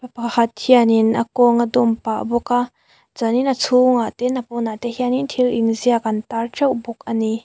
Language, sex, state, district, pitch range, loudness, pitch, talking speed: Mizo, female, Mizoram, Aizawl, 230-250 Hz, -18 LUFS, 235 Hz, 215 wpm